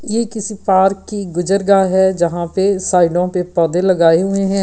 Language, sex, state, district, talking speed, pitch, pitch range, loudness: Hindi, female, Delhi, New Delhi, 170 wpm, 190 Hz, 175-195 Hz, -15 LUFS